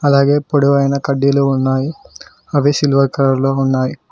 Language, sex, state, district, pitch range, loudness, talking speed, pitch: Telugu, male, Telangana, Mahabubabad, 135-145 Hz, -15 LUFS, 130 wpm, 140 Hz